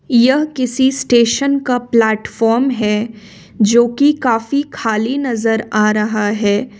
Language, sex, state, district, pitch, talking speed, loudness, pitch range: Hindi, female, Jharkhand, Ranchi, 235 Hz, 125 wpm, -15 LUFS, 215-260 Hz